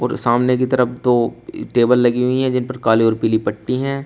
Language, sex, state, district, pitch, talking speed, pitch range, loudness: Hindi, male, Uttar Pradesh, Shamli, 125 Hz, 220 wpm, 120-125 Hz, -17 LUFS